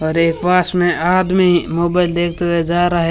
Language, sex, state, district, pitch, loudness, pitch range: Hindi, male, Rajasthan, Bikaner, 175 Hz, -15 LUFS, 170-180 Hz